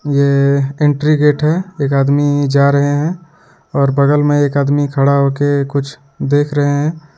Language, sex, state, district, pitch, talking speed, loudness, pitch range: Hindi, male, Jharkhand, Deoghar, 145 Hz, 165 wpm, -14 LUFS, 140-150 Hz